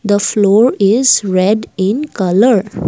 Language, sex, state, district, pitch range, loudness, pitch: English, female, Assam, Kamrup Metropolitan, 195-230 Hz, -12 LUFS, 205 Hz